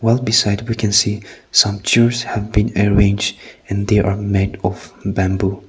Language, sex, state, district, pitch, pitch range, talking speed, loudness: English, male, Nagaland, Kohima, 100 Hz, 100-105 Hz, 170 wpm, -17 LUFS